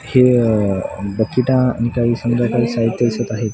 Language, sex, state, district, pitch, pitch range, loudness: Marathi, male, Maharashtra, Washim, 120 Hz, 110-120 Hz, -17 LUFS